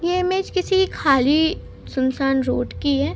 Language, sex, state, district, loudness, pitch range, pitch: Hindi, female, Uttar Pradesh, Gorakhpur, -20 LUFS, 270-370 Hz, 305 Hz